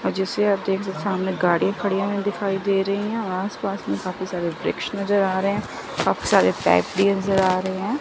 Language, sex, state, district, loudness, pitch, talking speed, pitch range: Hindi, female, Chandigarh, Chandigarh, -22 LUFS, 195 Hz, 240 wpm, 185-200 Hz